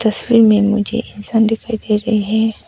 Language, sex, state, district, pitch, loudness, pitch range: Hindi, female, Arunachal Pradesh, Papum Pare, 220 Hz, -15 LUFS, 210-225 Hz